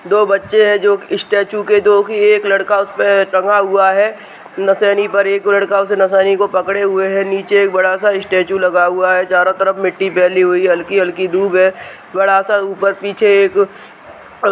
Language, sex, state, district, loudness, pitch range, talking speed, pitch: Hindi, male, Uttar Pradesh, Hamirpur, -13 LUFS, 190-200 Hz, 210 wpm, 195 Hz